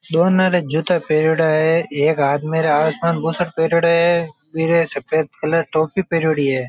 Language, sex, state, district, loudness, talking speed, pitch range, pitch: Marwari, male, Rajasthan, Nagaur, -17 LUFS, 170 wpm, 155-170 Hz, 160 Hz